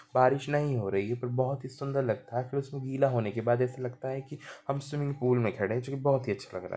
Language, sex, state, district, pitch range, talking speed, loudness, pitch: Hindi, male, Chhattisgarh, Bilaspur, 125-140 Hz, 300 wpm, -31 LUFS, 130 Hz